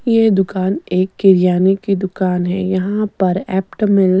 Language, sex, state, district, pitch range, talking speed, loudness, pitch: Hindi, female, Chandigarh, Chandigarh, 185-195 Hz, 170 wpm, -16 LUFS, 190 Hz